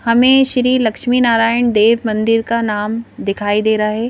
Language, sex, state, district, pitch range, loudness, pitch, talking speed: Hindi, female, Madhya Pradesh, Bhopal, 215-240 Hz, -14 LUFS, 225 Hz, 175 wpm